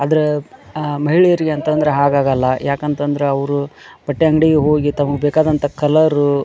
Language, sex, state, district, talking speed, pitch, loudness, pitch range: Kannada, male, Karnataka, Dharwad, 130 wpm, 145 Hz, -16 LUFS, 140-155 Hz